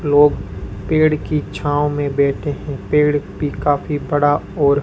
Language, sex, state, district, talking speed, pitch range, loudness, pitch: Hindi, male, Rajasthan, Bikaner, 150 wpm, 140-150 Hz, -18 LUFS, 145 Hz